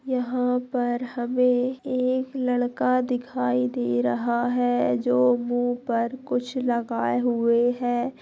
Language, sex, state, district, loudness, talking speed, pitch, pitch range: Hindi, female, Bihar, Jamui, -24 LUFS, 115 wpm, 245 Hz, 235-250 Hz